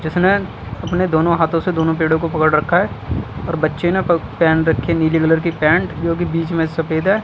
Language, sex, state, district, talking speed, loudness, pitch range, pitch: Hindi, male, Delhi, New Delhi, 230 wpm, -17 LUFS, 160-170 Hz, 165 Hz